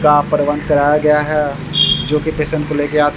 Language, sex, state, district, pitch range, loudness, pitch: Hindi, male, Bihar, Vaishali, 145-150 Hz, -14 LUFS, 150 Hz